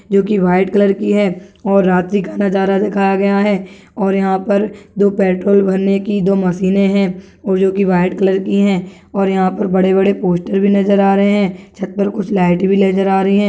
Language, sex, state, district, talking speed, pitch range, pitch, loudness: Hindi, female, Rajasthan, Churu, 205 wpm, 190-200 Hz, 195 Hz, -14 LUFS